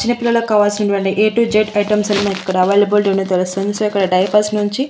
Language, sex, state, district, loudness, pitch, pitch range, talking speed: Telugu, female, Andhra Pradesh, Annamaya, -15 LUFS, 205 Hz, 195-210 Hz, 185 wpm